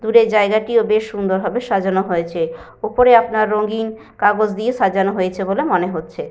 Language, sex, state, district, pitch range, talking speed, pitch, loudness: Bengali, female, Jharkhand, Sahebganj, 190-225 Hz, 150 wpm, 210 Hz, -17 LUFS